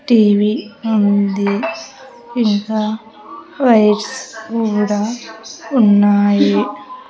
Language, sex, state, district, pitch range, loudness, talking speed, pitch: Telugu, female, Andhra Pradesh, Sri Satya Sai, 205-235 Hz, -15 LUFS, 50 wpm, 220 Hz